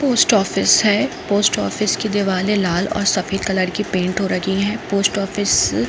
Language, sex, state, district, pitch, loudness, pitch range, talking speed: Hindi, female, Jharkhand, Jamtara, 200 Hz, -17 LUFS, 190-210 Hz, 185 wpm